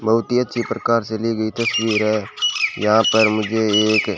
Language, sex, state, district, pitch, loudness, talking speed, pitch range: Hindi, male, Rajasthan, Bikaner, 110 Hz, -18 LUFS, 185 wpm, 110-115 Hz